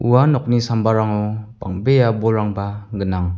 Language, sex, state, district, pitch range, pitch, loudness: Garo, male, Meghalaya, West Garo Hills, 100-120 Hz, 110 Hz, -18 LUFS